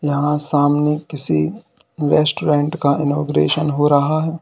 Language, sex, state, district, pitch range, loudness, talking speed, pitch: Hindi, male, Uttar Pradesh, Lalitpur, 145-150 Hz, -17 LUFS, 120 wpm, 150 Hz